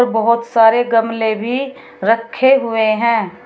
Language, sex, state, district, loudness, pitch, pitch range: Hindi, female, Uttar Pradesh, Shamli, -15 LUFS, 230 Hz, 225-240 Hz